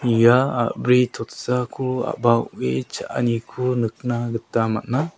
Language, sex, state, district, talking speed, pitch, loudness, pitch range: Garo, male, Meghalaya, South Garo Hills, 105 wpm, 120 Hz, -21 LUFS, 115-125 Hz